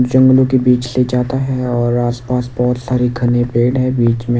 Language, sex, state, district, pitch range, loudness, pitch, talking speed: Hindi, male, Odisha, Nuapada, 120-125 Hz, -15 LUFS, 125 Hz, 205 wpm